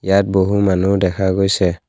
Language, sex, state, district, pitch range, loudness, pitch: Assamese, male, Assam, Kamrup Metropolitan, 95-100 Hz, -16 LUFS, 95 Hz